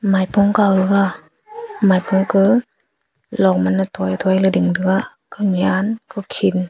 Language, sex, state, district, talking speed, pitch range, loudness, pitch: Wancho, female, Arunachal Pradesh, Longding, 135 wpm, 185-200 Hz, -17 LUFS, 195 Hz